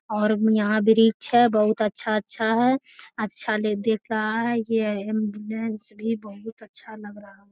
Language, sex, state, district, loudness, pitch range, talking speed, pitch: Hindi, female, Bihar, Jamui, -23 LUFS, 210-225 Hz, 150 wpm, 215 Hz